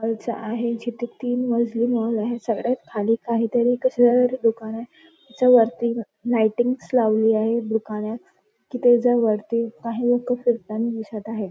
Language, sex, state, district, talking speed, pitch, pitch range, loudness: Marathi, female, Maharashtra, Nagpur, 135 wpm, 235 Hz, 225-245 Hz, -22 LUFS